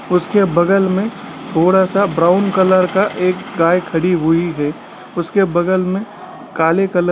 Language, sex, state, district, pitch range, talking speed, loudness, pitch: Hindi, male, Bihar, Gaya, 175-195 Hz, 150 wpm, -15 LUFS, 185 Hz